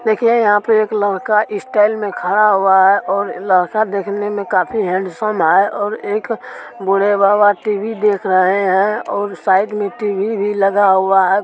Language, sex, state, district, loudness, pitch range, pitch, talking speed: Maithili, female, Bihar, Supaul, -15 LUFS, 195-210 Hz, 205 Hz, 175 wpm